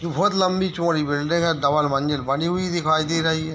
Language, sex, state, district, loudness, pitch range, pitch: Hindi, male, Chhattisgarh, Bilaspur, -21 LUFS, 150-175 Hz, 165 Hz